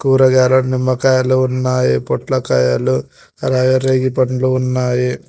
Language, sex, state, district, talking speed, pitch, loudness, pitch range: Telugu, male, Telangana, Hyderabad, 90 wpm, 130 Hz, -15 LUFS, 125-130 Hz